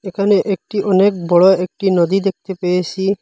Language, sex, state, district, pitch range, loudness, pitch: Bengali, male, Assam, Hailakandi, 180-195 Hz, -15 LUFS, 190 Hz